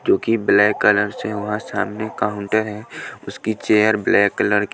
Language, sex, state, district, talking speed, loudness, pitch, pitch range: Hindi, male, Punjab, Pathankot, 175 wpm, -19 LUFS, 105 Hz, 105-110 Hz